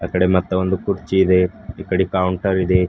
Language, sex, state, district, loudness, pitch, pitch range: Kannada, male, Karnataka, Bidar, -18 LUFS, 95 Hz, 90-95 Hz